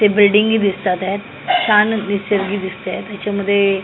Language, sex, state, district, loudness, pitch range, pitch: Marathi, female, Maharashtra, Mumbai Suburban, -17 LUFS, 195-210 Hz, 200 Hz